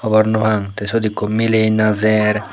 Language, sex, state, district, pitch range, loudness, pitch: Chakma, male, Tripura, Unakoti, 105-110 Hz, -16 LUFS, 110 Hz